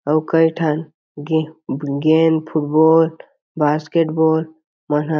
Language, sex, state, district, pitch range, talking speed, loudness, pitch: Chhattisgarhi, male, Chhattisgarh, Jashpur, 150-160 Hz, 125 wpm, -17 LUFS, 160 Hz